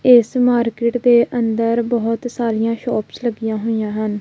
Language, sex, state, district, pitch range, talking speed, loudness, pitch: Punjabi, female, Punjab, Kapurthala, 225-240 Hz, 140 wpm, -18 LUFS, 230 Hz